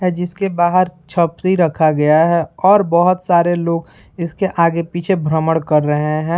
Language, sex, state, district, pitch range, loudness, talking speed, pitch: Hindi, male, Bihar, Saran, 160-180 Hz, -15 LUFS, 160 wpm, 170 Hz